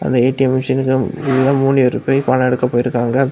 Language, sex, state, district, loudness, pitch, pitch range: Tamil, male, Tamil Nadu, Kanyakumari, -15 LUFS, 130 Hz, 125-135 Hz